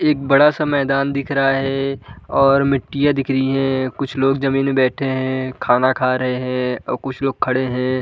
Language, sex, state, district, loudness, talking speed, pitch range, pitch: Hindi, male, Uttar Pradesh, Budaun, -18 LUFS, 195 wpm, 130-135 Hz, 135 Hz